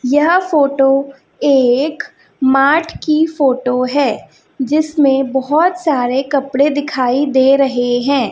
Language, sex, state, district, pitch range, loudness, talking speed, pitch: Hindi, female, Chhattisgarh, Raipur, 265-300 Hz, -14 LUFS, 110 wpm, 275 Hz